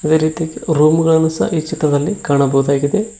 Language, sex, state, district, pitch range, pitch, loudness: Kannada, male, Karnataka, Koppal, 145-165 Hz, 160 Hz, -15 LUFS